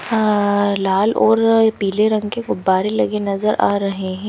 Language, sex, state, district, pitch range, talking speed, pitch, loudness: Hindi, female, Himachal Pradesh, Shimla, 195-215 Hz, 170 wpm, 210 Hz, -17 LUFS